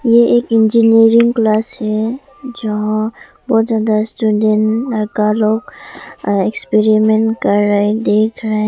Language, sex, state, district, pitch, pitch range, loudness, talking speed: Hindi, female, Arunachal Pradesh, Longding, 220 Hz, 215-230 Hz, -14 LUFS, 110 wpm